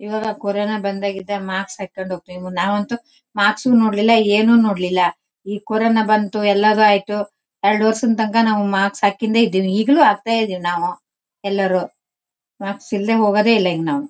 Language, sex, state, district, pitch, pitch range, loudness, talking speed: Kannada, female, Karnataka, Shimoga, 205 Hz, 195-220 Hz, -17 LUFS, 135 wpm